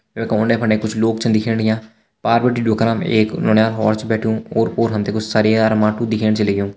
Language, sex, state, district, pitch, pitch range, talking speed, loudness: Hindi, male, Uttarakhand, Uttarkashi, 110 Hz, 110-115 Hz, 230 wpm, -17 LUFS